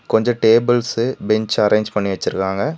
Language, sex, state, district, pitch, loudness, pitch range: Tamil, male, Tamil Nadu, Nilgiris, 110 Hz, -17 LUFS, 105-120 Hz